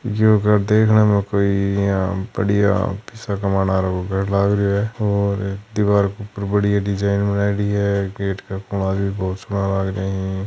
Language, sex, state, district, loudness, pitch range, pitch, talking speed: Hindi, male, Rajasthan, Churu, -19 LUFS, 95-100 Hz, 100 Hz, 135 wpm